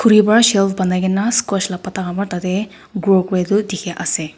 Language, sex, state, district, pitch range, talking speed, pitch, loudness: Nagamese, female, Nagaland, Kohima, 185-205 Hz, 205 wpm, 190 Hz, -17 LUFS